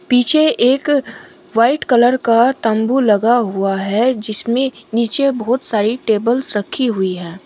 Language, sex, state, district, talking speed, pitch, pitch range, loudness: Hindi, female, Uttar Pradesh, Shamli, 135 wpm, 235 Hz, 215-260 Hz, -15 LUFS